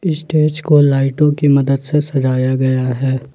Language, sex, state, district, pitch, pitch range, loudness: Hindi, male, Jharkhand, Ranchi, 140 Hz, 130-150 Hz, -14 LUFS